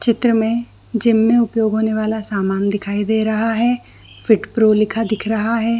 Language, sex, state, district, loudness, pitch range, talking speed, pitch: Hindi, female, Chhattisgarh, Bilaspur, -17 LUFS, 215-230 Hz, 185 wpm, 220 Hz